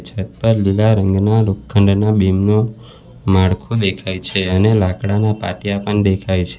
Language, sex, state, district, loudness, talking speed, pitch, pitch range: Gujarati, male, Gujarat, Valsad, -16 LUFS, 145 wpm, 100 Hz, 95-105 Hz